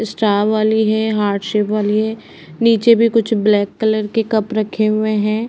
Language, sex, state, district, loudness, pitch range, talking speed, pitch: Hindi, female, Uttar Pradesh, Varanasi, -16 LUFS, 210-220 Hz, 185 wpm, 215 Hz